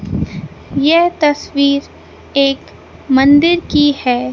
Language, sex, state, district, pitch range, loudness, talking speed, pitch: Hindi, male, Madhya Pradesh, Katni, 275-300 Hz, -13 LUFS, 85 wpm, 285 Hz